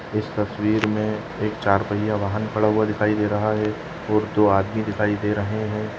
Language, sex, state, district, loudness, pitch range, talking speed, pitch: Hindi, male, Maharashtra, Nagpur, -22 LUFS, 105-110 Hz, 200 wpm, 105 Hz